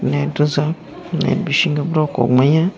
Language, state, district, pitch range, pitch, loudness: Kokborok, Tripura, Dhalai, 145-165 Hz, 150 Hz, -17 LUFS